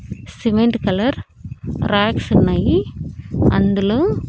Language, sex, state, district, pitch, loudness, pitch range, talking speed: Telugu, female, Andhra Pradesh, Annamaya, 225 Hz, -17 LUFS, 200-235 Hz, 55 wpm